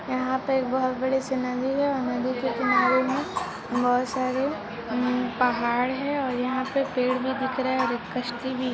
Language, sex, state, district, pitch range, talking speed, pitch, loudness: Hindi, female, Jharkhand, Sahebganj, 250-265 Hz, 190 wpm, 255 Hz, -26 LUFS